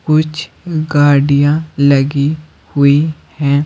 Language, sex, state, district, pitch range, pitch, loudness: Hindi, male, Bihar, Patna, 140-155 Hz, 145 Hz, -13 LUFS